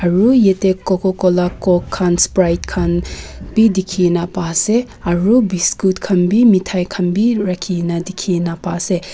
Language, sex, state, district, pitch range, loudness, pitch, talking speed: Nagamese, female, Nagaland, Kohima, 175-195 Hz, -15 LUFS, 185 Hz, 140 wpm